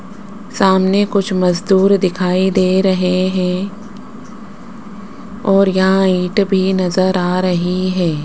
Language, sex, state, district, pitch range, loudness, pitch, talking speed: Hindi, female, Rajasthan, Jaipur, 185-205 Hz, -14 LUFS, 190 Hz, 110 wpm